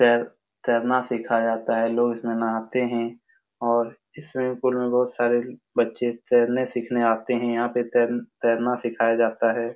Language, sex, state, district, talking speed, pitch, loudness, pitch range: Hindi, male, Bihar, Supaul, 170 wpm, 120 Hz, -24 LUFS, 115-125 Hz